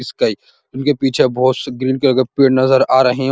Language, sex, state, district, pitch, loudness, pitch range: Hindi, male, Uttar Pradesh, Muzaffarnagar, 130 Hz, -15 LUFS, 130-135 Hz